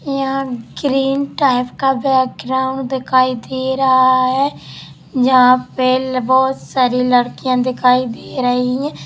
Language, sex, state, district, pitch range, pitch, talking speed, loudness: Hindi, female, Bihar, Sitamarhi, 250-265 Hz, 255 Hz, 120 wpm, -16 LUFS